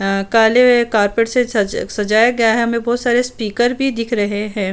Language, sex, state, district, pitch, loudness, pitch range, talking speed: Hindi, female, Uttar Pradesh, Muzaffarnagar, 230 Hz, -15 LUFS, 210-240 Hz, 205 wpm